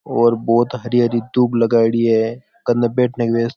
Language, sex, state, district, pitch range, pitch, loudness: Rajasthani, male, Rajasthan, Churu, 115-120 Hz, 120 Hz, -17 LUFS